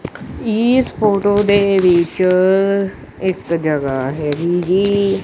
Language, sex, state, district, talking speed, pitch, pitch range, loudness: Punjabi, male, Punjab, Kapurthala, 90 wpm, 190 Hz, 170-200 Hz, -16 LUFS